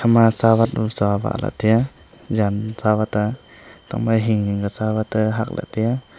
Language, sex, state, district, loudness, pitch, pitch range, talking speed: Wancho, male, Arunachal Pradesh, Longding, -20 LUFS, 110 Hz, 105-115 Hz, 165 wpm